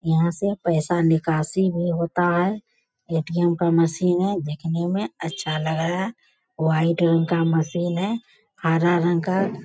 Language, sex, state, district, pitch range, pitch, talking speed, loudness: Hindi, female, Bihar, Bhagalpur, 165-180 Hz, 170 Hz, 160 wpm, -22 LUFS